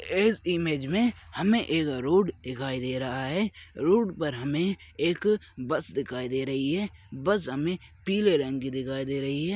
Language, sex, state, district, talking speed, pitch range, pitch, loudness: Hindi, male, Chhattisgarh, Rajnandgaon, 175 wpm, 135-195 Hz, 150 Hz, -28 LUFS